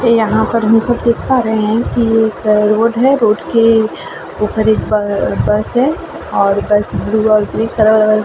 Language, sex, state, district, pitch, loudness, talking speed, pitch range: Hindi, female, Bihar, Vaishali, 220 Hz, -13 LUFS, 205 wpm, 210-230 Hz